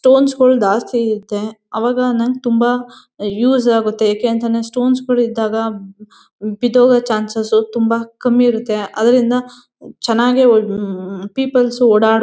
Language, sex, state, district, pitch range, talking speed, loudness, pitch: Kannada, female, Karnataka, Mysore, 215-245 Hz, 125 wpm, -15 LUFS, 230 Hz